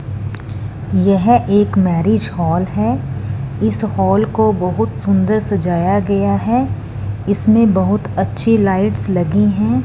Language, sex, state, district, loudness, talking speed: Hindi, female, Punjab, Fazilka, -16 LUFS, 115 wpm